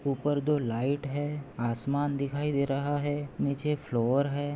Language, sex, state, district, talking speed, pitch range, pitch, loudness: Hindi, male, Maharashtra, Pune, 160 wpm, 135-145 Hz, 140 Hz, -30 LUFS